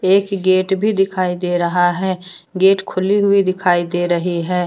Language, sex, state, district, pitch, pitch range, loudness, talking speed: Hindi, female, Jharkhand, Deoghar, 185 Hz, 175-195 Hz, -16 LUFS, 180 wpm